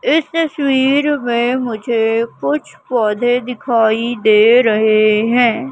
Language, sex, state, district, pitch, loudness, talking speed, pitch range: Hindi, female, Madhya Pradesh, Katni, 240 Hz, -14 LUFS, 105 wpm, 225-265 Hz